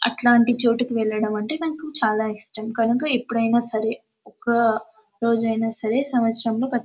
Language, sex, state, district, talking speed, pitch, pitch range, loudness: Telugu, female, Andhra Pradesh, Anantapur, 140 wpm, 230 Hz, 220-240 Hz, -22 LUFS